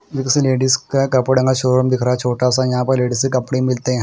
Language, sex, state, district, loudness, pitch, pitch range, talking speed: Hindi, male, Punjab, Kapurthala, -16 LUFS, 130 Hz, 125-130 Hz, 270 wpm